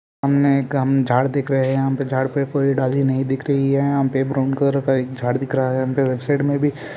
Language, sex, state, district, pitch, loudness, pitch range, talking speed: Hindi, male, Jharkhand, Sahebganj, 135 Hz, -19 LUFS, 130-140 Hz, 285 wpm